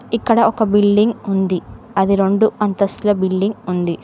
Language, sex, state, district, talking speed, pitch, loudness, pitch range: Telugu, female, Telangana, Mahabubabad, 135 wpm, 205 Hz, -16 LUFS, 195-220 Hz